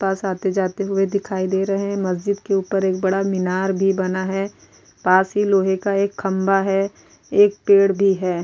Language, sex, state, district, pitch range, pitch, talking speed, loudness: Hindi, female, Goa, North and South Goa, 190-195 Hz, 195 Hz, 200 wpm, -19 LUFS